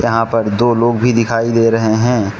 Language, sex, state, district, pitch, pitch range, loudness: Hindi, male, Manipur, Imphal West, 115 Hz, 115-120 Hz, -14 LUFS